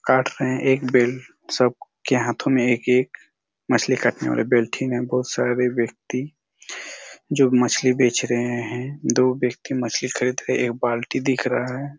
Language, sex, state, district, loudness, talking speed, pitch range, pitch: Hindi, male, Chhattisgarh, Raigarh, -21 LUFS, 170 wpm, 120-130 Hz, 125 Hz